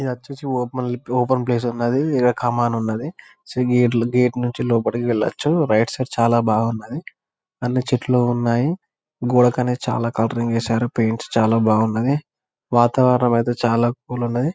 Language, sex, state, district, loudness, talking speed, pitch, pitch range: Telugu, male, Telangana, Karimnagar, -20 LUFS, 135 wpm, 120 Hz, 115-125 Hz